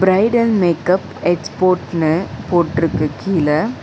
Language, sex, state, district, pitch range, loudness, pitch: Tamil, female, Tamil Nadu, Chennai, 160-185 Hz, -17 LUFS, 175 Hz